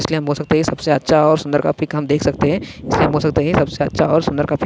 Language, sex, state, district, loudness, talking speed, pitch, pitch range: Hindi, male, Maharashtra, Sindhudurg, -17 LUFS, 350 wpm, 150 Hz, 145-155 Hz